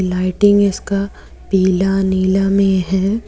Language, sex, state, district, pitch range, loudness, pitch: Hindi, female, Jharkhand, Deoghar, 185-200 Hz, -15 LUFS, 195 Hz